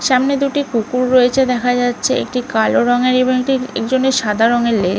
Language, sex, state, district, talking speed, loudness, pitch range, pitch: Bengali, female, West Bengal, Malda, 180 wpm, -15 LUFS, 235-260 Hz, 250 Hz